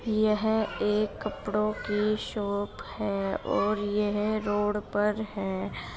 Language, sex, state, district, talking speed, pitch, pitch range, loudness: Hindi, female, Uttar Pradesh, Muzaffarnagar, 110 wpm, 210 Hz, 205-215 Hz, -29 LUFS